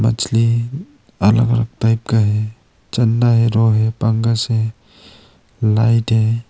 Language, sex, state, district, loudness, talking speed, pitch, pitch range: Hindi, male, Arunachal Pradesh, Longding, -16 LUFS, 130 wpm, 115 Hz, 110-115 Hz